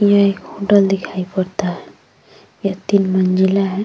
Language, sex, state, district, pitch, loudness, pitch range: Hindi, female, Uttar Pradesh, Jyotiba Phule Nagar, 195 Hz, -17 LUFS, 185-200 Hz